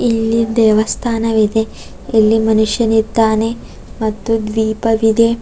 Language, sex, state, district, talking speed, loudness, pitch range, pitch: Kannada, female, Karnataka, Bidar, 65 wpm, -14 LUFS, 220-230 Hz, 225 Hz